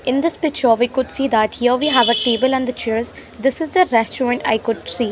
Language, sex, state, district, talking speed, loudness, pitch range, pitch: English, female, Haryana, Rohtak, 255 wpm, -18 LUFS, 230-265 Hz, 245 Hz